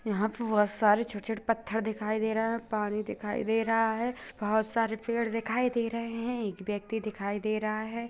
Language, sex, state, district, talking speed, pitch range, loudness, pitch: Hindi, female, Bihar, Lakhisarai, 205 wpm, 215-230 Hz, -30 LUFS, 220 Hz